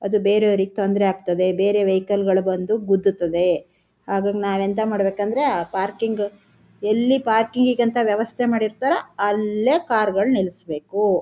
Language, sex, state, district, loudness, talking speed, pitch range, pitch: Kannada, female, Karnataka, Shimoga, -20 LUFS, 140 wpm, 195-220 Hz, 205 Hz